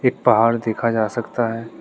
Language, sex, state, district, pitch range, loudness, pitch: Hindi, male, Arunachal Pradesh, Lower Dibang Valley, 115-120 Hz, -19 LUFS, 115 Hz